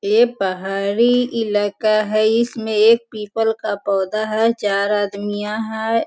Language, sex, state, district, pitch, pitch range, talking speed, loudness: Hindi, female, Bihar, Sitamarhi, 215 Hz, 205-225 Hz, 140 wpm, -18 LUFS